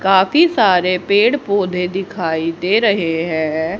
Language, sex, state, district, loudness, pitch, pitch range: Hindi, female, Haryana, Jhajjar, -16 LUFS, 185 Hz, 165-205 Hz